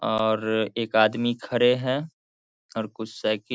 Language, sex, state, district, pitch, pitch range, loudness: Hindi, male, Bihar, Saharsa, 110 Hz, 110-120 Hz, -24 LUFS